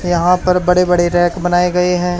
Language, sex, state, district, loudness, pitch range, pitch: Hindi, male, Haryana, Charkhi Dadri, -14 LUFS, 175-180 Hz, 180 Hz